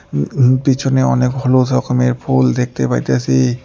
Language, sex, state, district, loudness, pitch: Bengali, male, West Bengal, Alipurduar, -15 LUFS, 125 Hz